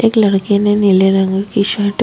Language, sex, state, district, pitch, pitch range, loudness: Hindi, female, Chhattisgarh, Kabirdham, 205 Hz, 195-210 Hz, -13 LUFS